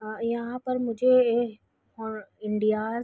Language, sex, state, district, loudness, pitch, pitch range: Hindi, female, Chhattisgarh, Raigarh, -26 LUFS, 230 Hz, 215-240 Hz